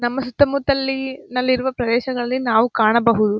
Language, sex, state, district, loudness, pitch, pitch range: Kannada, female, Karnataka, Gulbarga, -19 LUFS, 250 Hz, 235-265 Hz